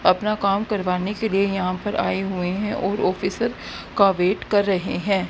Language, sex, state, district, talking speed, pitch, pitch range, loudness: Hindi, female, Haryana, Rohtak, 190 wpm, 195 Hz, 185-205 Hz, -22 LUFS